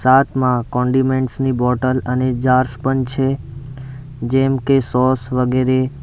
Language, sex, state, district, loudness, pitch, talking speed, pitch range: Gujarati, male, Gujarat, Valsad, -17 LUFS, 130 Hz, 120 wpm, 125-135 Hz